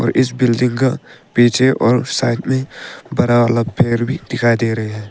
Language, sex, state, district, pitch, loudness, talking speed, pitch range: Hindi, male, Arunachal Pradesh, Papum Pare, 120 Hz, -16 LUFS, 175 wpm, 115-130 Hz